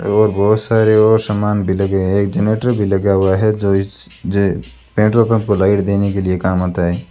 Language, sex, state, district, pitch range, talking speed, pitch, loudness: Hindi, male, Rajasthan, Bikaner, 95-105 Hz, 220 wpm, 100 Hz, -15 LUFS